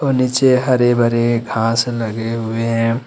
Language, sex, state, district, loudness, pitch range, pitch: Hindi, male, Jharkhand, Ranchi, -16 LUFS, 115-125 Hz, 120 Hz